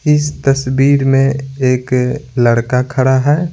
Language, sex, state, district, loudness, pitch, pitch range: Hindi, male, Bihar, Patna, -13 LUFS, 135 Hz, 130-140 Hz